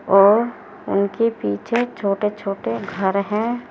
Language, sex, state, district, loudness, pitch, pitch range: Hindi, female, Uttar Pradesh, Saharanpur, -20 LUFS, 200 Hz, 195-230 Hz